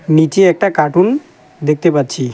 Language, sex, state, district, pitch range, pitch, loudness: Bengali, male, West Bengal, Alipurduar, 150-190 Hz, 165 Hz, -13 LUFS